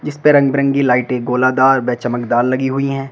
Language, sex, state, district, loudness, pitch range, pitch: Hindi, male, Uttar Pradesh, Shamli, -15 LUFS, 125-140 Hz, 130 Hz